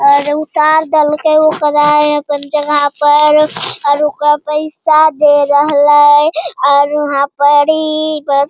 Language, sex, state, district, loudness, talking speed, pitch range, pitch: Hindi, male, Bihar, Jamui, -11 LUFS, 125 wpm, 290-310 Hz, 295 Hz